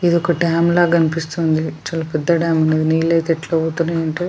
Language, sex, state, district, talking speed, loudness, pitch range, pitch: Telugu, female, Telangana, Nalgonda, 195 wpm, -17 LUFS, 160-170 Hz, 165 Hz